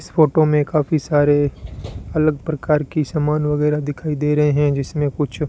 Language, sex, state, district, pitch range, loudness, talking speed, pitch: Hindi, male, Rajasthan, Bikaner, 145-150 Hz, -18 LUFS, 175 wpm, 150 Hz